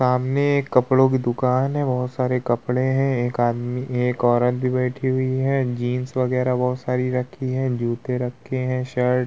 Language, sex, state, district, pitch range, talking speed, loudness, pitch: Hindi, male, Uttar Pradesh, Budaun, 125-130 Hz, 190 wpm, -22 LUFS, 125 Hz